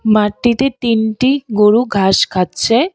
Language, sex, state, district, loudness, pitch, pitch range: Bengali, female, West Bengal, Alipurduar, -14 LUFS, 225 Hz, 210-245 Hz